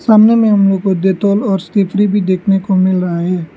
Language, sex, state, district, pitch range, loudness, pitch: Hindi, male, Arunachal Pradesh, Lower Dibang Valley, 185-205 Hz, -13 LUFS, 195 Hz